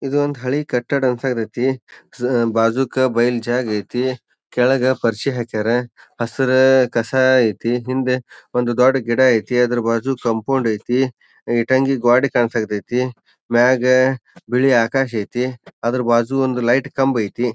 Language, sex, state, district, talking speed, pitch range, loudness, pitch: Kannada, male, Karnataka, Bijapur, 130 wpm, 120-130 Hz, -18 LUFS, 125 Hz